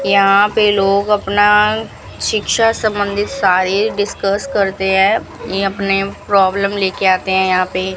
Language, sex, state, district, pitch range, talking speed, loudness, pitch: Hindi, female, Rajasthan, Bikaner, 190-205 Hz, 135 wpm, -14 LUFS, 200 Hz